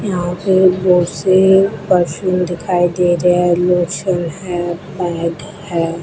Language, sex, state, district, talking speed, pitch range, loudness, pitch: Hindi, female, Rajasthan, Bikaner, 130 wpm, 175-185 Hz, -15 LUFS, 180 Hz